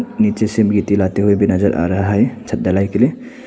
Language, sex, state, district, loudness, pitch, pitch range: Hindi, male, Arunachal Pradesh, Papum Pare, -16 LUFS, 100 Hz, 100-125 Hz